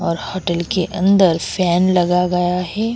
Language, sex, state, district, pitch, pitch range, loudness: Hindi, female, Goa, North and South Goa, 180 Hz, 175-190 Hz, -17 LUFS